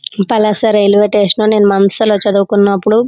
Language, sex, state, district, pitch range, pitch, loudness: Telugu, female, Andhra Pradesh, Srikakulam, 200-215 Hz, 205 Hz, -11 LUFS